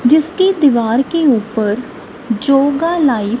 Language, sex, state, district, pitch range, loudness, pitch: Hindi, female, Punjab, Kapurthala, 230-315 Hz, -14 LUFS, 275 Hz